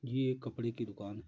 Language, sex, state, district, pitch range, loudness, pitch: Hindi, male, Uttar Pradesh, Jalaun, 110-130 Hz, -38 LUFS, 115 Hz